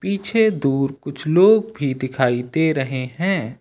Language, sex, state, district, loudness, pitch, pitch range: Hindi, male, Uttar Pradesh, Lucknow, -19 LUFS, 145 Hz, 130-195 Hz